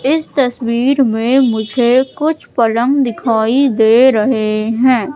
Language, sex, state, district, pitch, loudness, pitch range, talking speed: Hindi, female, Madhya Pradesh, Katni, 250 Hz, -13 LUFS, 230-270 Hz, 115 wpm